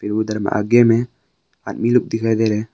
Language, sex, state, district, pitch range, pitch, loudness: Hindi, male, Arunachal Pradesh, Longding, 110-115 Hz, 110 Hz, -17 LUFS